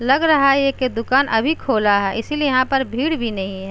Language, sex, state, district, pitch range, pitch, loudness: Hindi, female, Uttar Pradesh, Jalaun, 225-275 Hz, 260 Hz, -18 LUFS